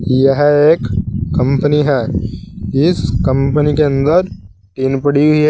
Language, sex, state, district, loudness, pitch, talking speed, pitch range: Hindi, male, Uttar Pradesh, Saharanpur, -14 LUFS, 135 Hz, 130 wpm, 125-150 Hz